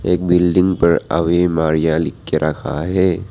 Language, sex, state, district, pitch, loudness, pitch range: Hindi, male, Arunachal Pradesh, Papum Pare, 85 Hz, -16 LUFS, 80-90 Hz